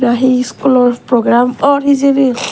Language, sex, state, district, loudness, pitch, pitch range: Chakma, female, Tripura, West Tripura, -11 LUFS, 255 Hz, 245-275 Hz